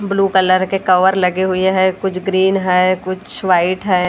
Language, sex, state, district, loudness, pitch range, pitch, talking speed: Hindi, female, Maharashtra, Gondia, -15 LUFS, 185-190 Hz, 185 Hz, 190 wpm